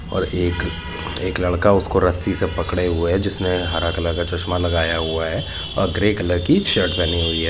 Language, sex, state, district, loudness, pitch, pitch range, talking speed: Hindi, male, Jharkhand, Jamtara, -19 LUFS, 90 Hz, 85-90 Hz, 210 wpm